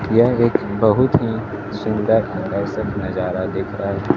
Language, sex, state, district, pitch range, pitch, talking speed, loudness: Hindi, male, Bihar, Kaimur, 100-110 Hz, 105 Hz, 145 wpm, -19 LUFS